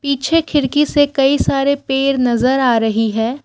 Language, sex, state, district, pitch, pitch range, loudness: Hindi, female, Assam, Kamrup Metropolitan, 270 Hz, 245-285 Hz, -15 LUFS